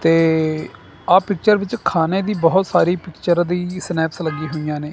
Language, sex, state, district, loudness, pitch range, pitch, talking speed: Punjabi, male, Punjab, Kapurthala, -18 LUFS, 160-185 Hz, 175 Hz, 170 wpm